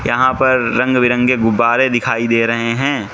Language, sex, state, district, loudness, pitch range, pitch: Hindi, male, Manipur, Imphal West, -14 LUFS, 115-130 Hz, 120 Hz